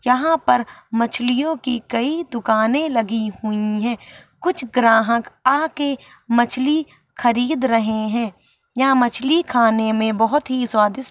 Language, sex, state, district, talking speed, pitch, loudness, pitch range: Hindi, female, Bihar, Saharsa, 130 wpm, 245 Hz, -19 LUFS, 225-275 Hz